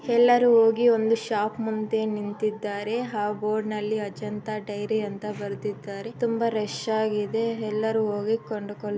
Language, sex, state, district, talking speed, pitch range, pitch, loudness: Kannada, female, Karnataka, Mysore, 135 wpm, 210-225 Hz, 215 Hz, -26 LUFS